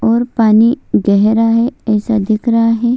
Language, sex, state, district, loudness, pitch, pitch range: Hindi, female, Chhattisgarh, Kabirdham, -12 LUFS, 230 Hz, 215-235 Hz